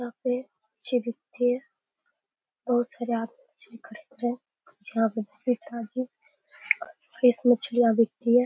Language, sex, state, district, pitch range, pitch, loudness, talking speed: Hindi, female, Bihar, Darbhanga, 230-255 Hz, 245 Hz, -27 LUFS, 130 wpm